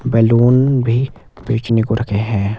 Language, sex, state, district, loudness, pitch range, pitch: Hindi, male, Himachal Pradesh, Shimla, -15 LUFS, 110-125 Hz, 115 Hz